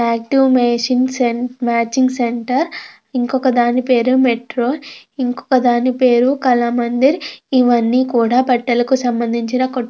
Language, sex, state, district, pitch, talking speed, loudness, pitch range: Telugu, female, Andhra Pradesh, Krishna, 250 Hz, 105 wpm, -16 LUFS, 240-260 Hz